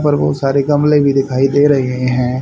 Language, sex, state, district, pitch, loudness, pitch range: Hindi, male, Haryana, Rohtak, 135 Hz, -13 LUFS, 125-145 Hz